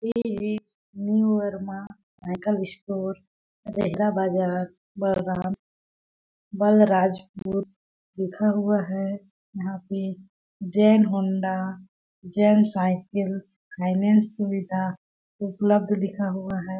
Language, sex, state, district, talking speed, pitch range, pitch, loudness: Hindi, female, Chhattisgarh, Balrampur, 90 wpm, 190-205 Hz, 195 Hz, -25 LUFS